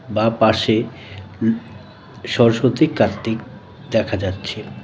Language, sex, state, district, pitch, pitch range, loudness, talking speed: Bengali, male, West Bengal, Cooch Behar, 110 Hz, 105-115 Hz, -19 LUFS, 85 wpm